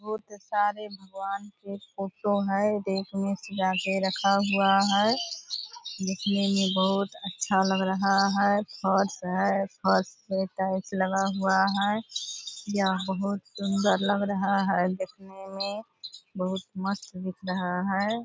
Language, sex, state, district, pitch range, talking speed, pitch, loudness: Hindi, female, Bihar, Purnia, 190-200 Hz, 155 wpm, 195 Hz, -27 LUFS